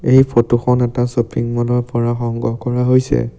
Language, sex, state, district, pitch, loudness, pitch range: Assamese, male, Assam, Sonitpur, 120 Hz, -16 LUFS, 120-125 Hz